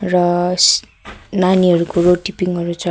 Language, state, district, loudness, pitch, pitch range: Nepali, West Bengal, Darjeeling, -15 LUFS, 180 Hz, 175-185 Hz